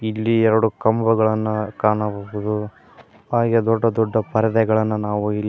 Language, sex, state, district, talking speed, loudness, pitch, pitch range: Kannada, male, Karnataka, Koppal, 110 wpm, -20 LUFS, 110 Hz, 105-115 Hz